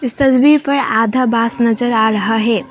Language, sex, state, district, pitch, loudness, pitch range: Hindi, female, Assam, Kamrup Metropolitan, 230 Hz, -13 LUFS, 225-260 Hz